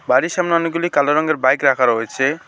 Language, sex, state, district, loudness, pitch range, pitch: Bengali, male, West Bengal, Alipurduar, -17 LUFS, 130-165 Hz, 145 Hz